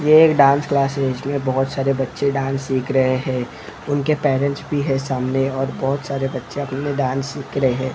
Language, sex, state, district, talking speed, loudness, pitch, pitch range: Hindi, male, Maharashtra, Mumbai Suburban, 190 wpm, -20 LUFS, 135 Hz, 135-140 Hz